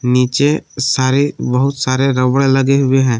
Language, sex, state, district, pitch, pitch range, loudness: Hindi, male, Jharkhand, Palamu, 135 Hz, 125-135 Hz, -14 LUFS